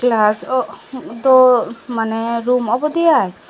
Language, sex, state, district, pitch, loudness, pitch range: Chakma, female, Tripura, Dhalai, 245 Hz, -16 LUFS, 230-260 Hz